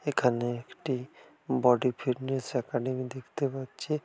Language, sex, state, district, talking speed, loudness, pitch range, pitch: Bengali, male, West Bengal, Dakshin Dinajpur, 105 wpm, -31 LUFS, 125-135 Hz, 130 Hz